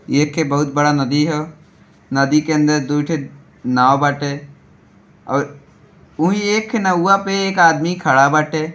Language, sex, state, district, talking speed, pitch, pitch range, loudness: Bhojpuri, male, Uttar Pradesh, Deoria, 145 wpm, 150 Hz, 145-165 Hz, -16 LUFS